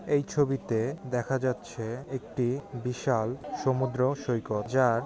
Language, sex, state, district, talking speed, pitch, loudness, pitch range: Bengali, male, West Bengal, Jhargram, 105 wpm, 130 Hz, -30 LUFS, 120-135 Hz